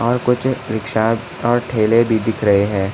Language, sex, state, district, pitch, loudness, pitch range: Hindi, male, Maharashtra, Nagpur, 115 Hz, -17 LUFS, 110-120 Hz